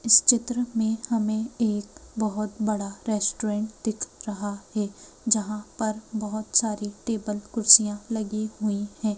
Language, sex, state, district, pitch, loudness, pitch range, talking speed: Hindi, female, Madhya Pradesh, Bhopal, 215 Hz, -24 LUFS, 210-225 Hz, 130 wpm